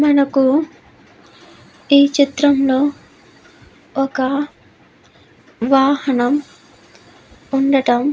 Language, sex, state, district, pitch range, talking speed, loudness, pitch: Telugu, female, Andhra Pradesh, Visakhapatnam, 270-285 Hz, 50 wpm, -16 LUFS, 275 Hz